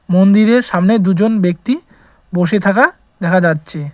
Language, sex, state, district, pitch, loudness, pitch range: Bengali, male, West Bengal, Cooch Behar, 195 Hz, -13 LUFS, 180-220 Hz